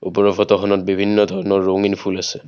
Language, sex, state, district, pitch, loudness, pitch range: Assamese, male, Assam, Kamrup Metropolitan, 100 Hz, -17 LUFS, 95-100 Hz